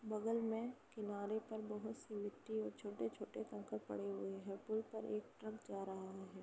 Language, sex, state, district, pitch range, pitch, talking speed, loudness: Hindi, female, Uttar Pradesh, Jalaun, 195-220 Hz, 210 Hz, 185 wpm, -46 LUFS